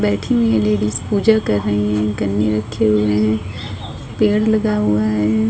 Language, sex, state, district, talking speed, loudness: Hindi, female, Uttar Pradesh, Budaun, 175 wpm, -17 LUFS